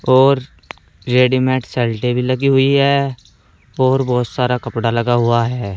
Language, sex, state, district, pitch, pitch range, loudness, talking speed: Hindi, male, Uttar Pradesh, Saharanpur, 125 Hz, 120-130 Hz, -16 LUFS, 145 wpm